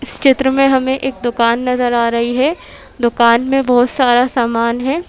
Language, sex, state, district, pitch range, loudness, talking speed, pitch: Hindi, female, Madhya Pradesh, Bhopal, 235-270 Hz, -14 LUFS, 190 wpm, 250 Hz